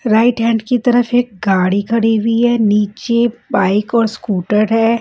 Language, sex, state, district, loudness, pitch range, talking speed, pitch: Hindi, female, Punjab, Kapurthala, -14 LUFS, 210-235 Hz, 165 wpm, 225 Hz